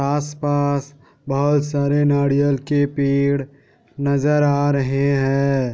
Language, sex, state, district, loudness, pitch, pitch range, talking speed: Hindi, male, Bihar, Kishanganj, -19 LUFS, 140 Hz, 140-145 Hz, 105 wpm